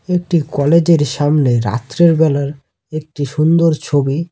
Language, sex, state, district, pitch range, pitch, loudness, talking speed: Bengali, male, West Bengal, Cooch Behar, 140-165 Hz, 150 Hz, -14 LUFS, 125 wpm